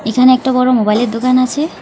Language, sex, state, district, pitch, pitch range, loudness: Bengali, female, West Bengal, Alipurduar, 255 Hz, 240-255 Hz, -12 LUFS